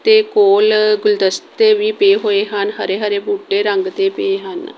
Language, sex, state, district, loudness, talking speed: Punjabi, female, Punjab, Kapurthala, -15 LUFS, 165 wpm